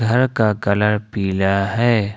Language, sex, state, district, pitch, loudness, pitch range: Hindi, male, Jharkhand, Ranchi, 105 Hz, -18 LUFS, 100-115 Hz